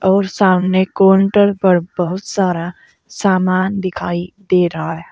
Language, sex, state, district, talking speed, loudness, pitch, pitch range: Hindi, female, Uttar Pradesh, Saharanpur, 130 wpm, -15 LUFS, 185 Hz, 180-195 Hz